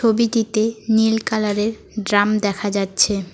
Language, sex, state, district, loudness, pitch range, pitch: Bengali, female, West Bengal, Alipurduar, -19 LUFS, 205-220 Hz, 215 Hz